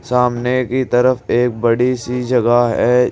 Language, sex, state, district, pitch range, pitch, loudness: Hindi, male, Uttar Pradesh, Saharanpur, 120-125 Hz, 125 Hz, -16 LUFS